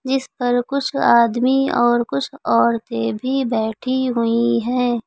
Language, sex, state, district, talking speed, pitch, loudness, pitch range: Hindi, female, Uttar Pradesh, Lucknow, 130 wpm, 240 Hz, -18 LUFS, 230-260 Hz